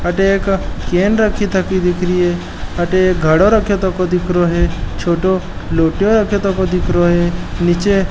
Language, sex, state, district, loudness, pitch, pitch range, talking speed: Marwari, male, Rajasthan, Nagaur, -15 LUFS, 185 Hz, 175-195 Hz, 165 wpm